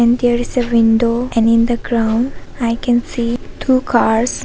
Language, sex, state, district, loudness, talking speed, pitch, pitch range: English, female, Arunachal Pradesh, Papum Pare, -15 LUFS, 190 wpm, 235 Hz, 230-245 Hz